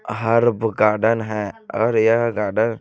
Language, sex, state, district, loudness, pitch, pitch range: Hindi, male, Chhattisgarh, Raipur, -19 LUFS, 115 Hz, 110-115 Hz